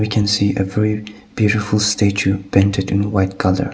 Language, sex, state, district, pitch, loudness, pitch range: English, male, Nagaland, Kohima, 100 Hz, -17 LUFS, 95-105 Hz